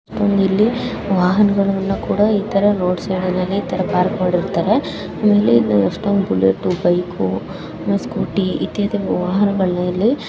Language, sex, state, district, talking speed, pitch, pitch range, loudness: Kannada, female, Karnataka, Belgaum, 110 wpm, 195 Hz, 180-205 Hz, -17 LUFS